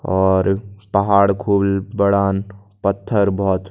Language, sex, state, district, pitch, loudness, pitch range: Kumaoni, male, Uttarakhand, Tehri Garhwal, 100 Hz, -18 LUFS, 95-100 Hz